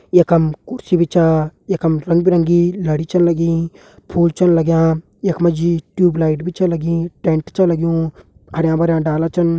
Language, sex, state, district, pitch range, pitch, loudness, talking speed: Hindi, male, Uttarakhand, Uttarkashi, 165-175 Hz, 170 Hz, -16 LUFS, 165 wpm